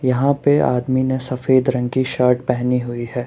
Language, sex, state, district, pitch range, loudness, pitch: Hindi, male, Rajasthan, Jaipur, 125-130 Hz, -18 LUFS, 125 Hz